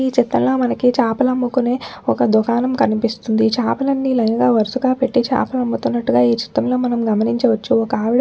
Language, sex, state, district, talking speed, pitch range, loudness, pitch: Telugu, female, Telangana, Nalgonda, 155 wpm, 225-255 Hz, -17 LUFS, 245 Hz